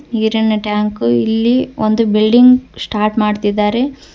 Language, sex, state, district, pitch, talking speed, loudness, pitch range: Kannada, female, Karnataka, Koppal, 215 Hz, 100 wpm, -14 LUFS, 210-235 Hz